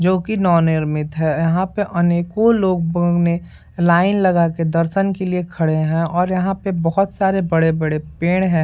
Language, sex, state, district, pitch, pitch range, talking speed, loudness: Hindi, male, Bihar, Saran, 175 Hz, 165-185 Hz, 175 wpm, -17 LUFS